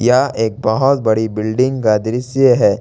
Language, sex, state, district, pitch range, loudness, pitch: Hindi, male, Jharkhand, Ranchi, 110-130 Hz, -15 LUFS, 120 Hz